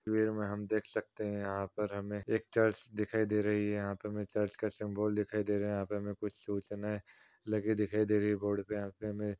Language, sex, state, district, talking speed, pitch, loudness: Hindi, male, Uttar Pradesh, Muzaffarnagar, 260 wpm, 105 Hz, -35 LUFS